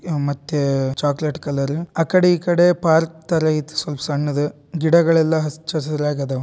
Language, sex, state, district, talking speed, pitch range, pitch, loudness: Kannada, male, Karnataka, Dharwad, 120 wpm, 145-165 Hz, 155 Hz, -19 LUFS